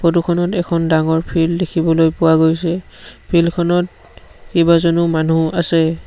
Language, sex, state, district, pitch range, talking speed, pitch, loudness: Assamese, male, Assam, Sonitpur, 160-170 Hz, 130 wpm, 170 Hz, -15 LUFS